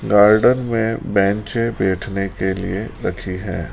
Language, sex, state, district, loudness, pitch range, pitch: Hindi, male, Rajasthan, Jaipur, -19 LUFS, 95-110 Hz, 100 Hz